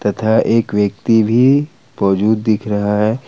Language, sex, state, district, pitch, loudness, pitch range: Hindi, male, Jharkhand, Ranchi, 110 Hz, -15 LUFS, 105-115 Hz